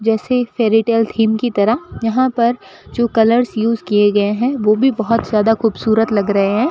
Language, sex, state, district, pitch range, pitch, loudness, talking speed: Hindi, female, Rajasthan, Bikaner, 215-235 Hz, 225 Hz, -15 LUFS, 195 wpm